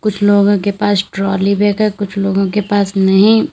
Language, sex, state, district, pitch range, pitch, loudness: Hindi, female, Uttar Pradesh, Lalitpur, 195-205 Hz, 200 Hz, -13 LUFS